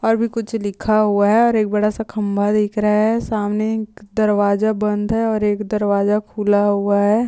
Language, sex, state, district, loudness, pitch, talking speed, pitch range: Hindi, female, Maharashtra, Dhule, -18 LUFS, 210 Hz, 205 wpm, 205-220 Hz